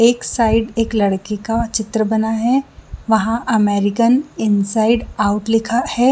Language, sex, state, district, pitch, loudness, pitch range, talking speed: Hindi, female, Jharkhand, Sahebganj, 225 Hz, -17 LUFS, 215-230 Hz, 135 wpm